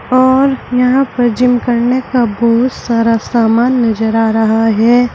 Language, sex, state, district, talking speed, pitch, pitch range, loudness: Hindi, female, Uttar Pradesh, Saharanpur, 150 wpm, 240 Hz, 230-250 Hz, -12 LUFS